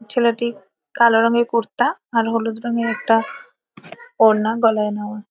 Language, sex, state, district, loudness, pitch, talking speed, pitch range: Bengali, female, West Bengal, North 24 Parganas, -18 LUFS, 230 Hz, 135 wpm, 220-235 Hz